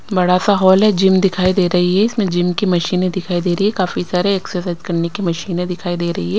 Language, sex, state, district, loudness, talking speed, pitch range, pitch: Hindi, female, Himachal Pradesh, Shimla, -16 LUFS, 255 wpm, 175-190 Hz, 180 Hz